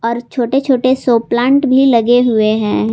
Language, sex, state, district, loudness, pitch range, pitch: Hindi, female, Jharkhand, Palamu, -13 LUFS, 230-260 Hz, 240 Hz